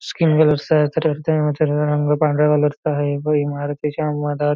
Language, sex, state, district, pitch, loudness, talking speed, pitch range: Marathi, male, Maharashtra, Nagpur, 150 Hz, -18 LUFS, 170 wpm, 145-155 Hz